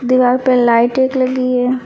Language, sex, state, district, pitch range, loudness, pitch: Hindi, female, Uttar Pradesh, Lucknow, 245-255 Hz, -13 LUFS, 255 Hz